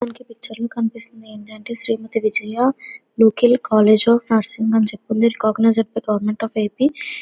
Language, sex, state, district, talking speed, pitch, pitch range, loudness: Telugu, female, Andhra Pradesh, Visakhapatnam, 160 wpm, 225 Hz, 215-235 Hz, -18 LUFS